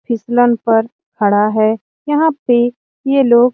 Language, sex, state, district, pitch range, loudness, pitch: Hindi, female, Bihar, Lakhisarai, 225-270 Hz, -14 LUFS, 240 Hz